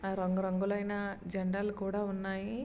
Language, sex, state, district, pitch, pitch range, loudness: Telugu, male, Andhra Pradesh, Srikakulam, 195 Hz, 190-205 Hz, -35 LUFS